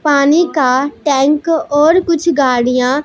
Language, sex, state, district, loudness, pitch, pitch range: Hindi, female, Punjab, Pathankot, -12 LUFS, 290 Hz, 270-320 Hz